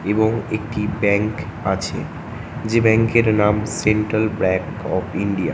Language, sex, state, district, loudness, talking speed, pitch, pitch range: Bengali, male, West Bengal, North 24 Parganas, -20 LUFS, 130 wpm, 105 Hz, 100-110 Hz